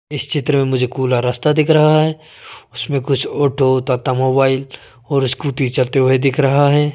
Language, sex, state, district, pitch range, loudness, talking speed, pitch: Hindi, male, Arunachal Pradesh, Lower Dibang Valley, 130-145 Hz, -16 LUFS, 180 wpm, 135 Hz